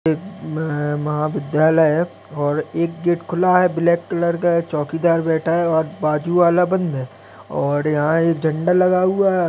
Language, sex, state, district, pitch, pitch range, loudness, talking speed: Hindi, male, Uttar Pradesh, Deoria, 165 Hz, 150-175 Hz, -19 LUFS, 170 wpm